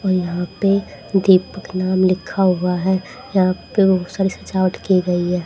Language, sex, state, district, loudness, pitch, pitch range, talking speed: Hindi, female, Haryana, Charkhi Dadri, -18 LUFS, 185 Hz, 180-195 Hz, 165 wpm